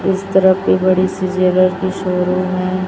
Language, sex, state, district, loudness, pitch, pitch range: Hindi, male, Chhattisgarh, Raipur, -15 LUFS, 185 Hz, 185-190 Hz